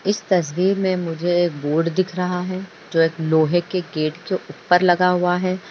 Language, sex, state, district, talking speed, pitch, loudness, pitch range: Hindi, female, Bihar, Bhagalpur, 200 wpm, 180 Hz, -20 LUFS, 165-185 Hz